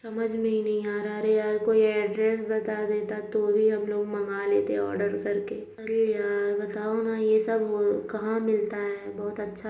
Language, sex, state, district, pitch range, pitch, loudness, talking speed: Hindi, female, Uttar Pradesh, Hamirpur, 205-220 Hz, 210 Hz, -27 LUFS, 210 wpm